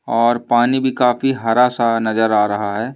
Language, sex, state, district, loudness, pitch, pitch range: Hindi, male, Madhya Pradesh, Umaria, -16 LUFS, 120 Hz, 110-125 Hz